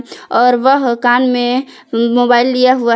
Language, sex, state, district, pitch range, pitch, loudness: Hindi, female, Jharkhand, Palamu, 240-255 Hz, 245 Hz, -12 LUFS